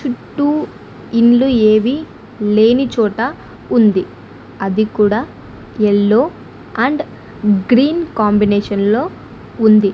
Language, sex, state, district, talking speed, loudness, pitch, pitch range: Telugu, female, Andhra Pradesh, Annamaya, 80 wpm, -14 LUFS, 220 Hz, 210-260 Hz